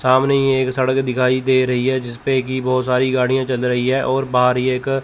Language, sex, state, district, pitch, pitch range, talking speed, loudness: Hindi, male, Chandigarh, Chandigarh, 130 Hz, 125-130 Hz, 240 wpm, -17 LUFS